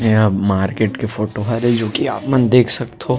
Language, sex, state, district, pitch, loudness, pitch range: Chhattisgarhi, male, Chhattisgarh, Sarguja, 110 Hz, -16 LUFS, 105-120 Hz